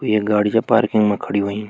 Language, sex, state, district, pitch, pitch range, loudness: Garhwali, male, Uttarakhand, Tehri Garhwal, 105 Hz, 105-110 Hz, -18 LUFS